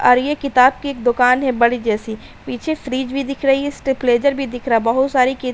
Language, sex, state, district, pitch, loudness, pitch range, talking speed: Hindi, female, Uttar Pradesh, Hamirpur, 255 Hz, -17 LUFS, 245-275 Hz, 260 wpm